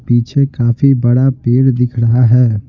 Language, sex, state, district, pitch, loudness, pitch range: Hindi, male, Bihar, Patna, 125 Hz, -12 LUFS, 120-130 Hz